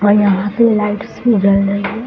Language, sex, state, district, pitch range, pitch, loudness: Hindi, female, Bihar, Gaya, 200-220 Hz, 205 Hz, -14 LUFS